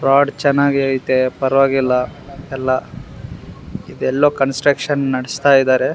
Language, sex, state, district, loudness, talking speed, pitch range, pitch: Kannada, male, Karnataka, Raichur, -16 LUFS, 80 wpm, 130-140 Hz, 135 Hz